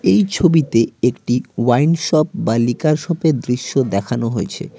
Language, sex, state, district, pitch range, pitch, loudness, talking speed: Bengali, male, West Bengal, Cooch Behar, 120-160 Hz, 130 Hz, -17 LUFS, 140 wpm